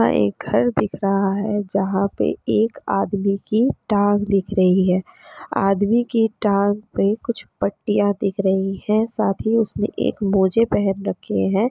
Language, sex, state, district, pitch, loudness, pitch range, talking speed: Hindi, female, Bihar, Sitamarhi, 200 Hz, -20 LUFS, 195-215 Hz, 165 wpm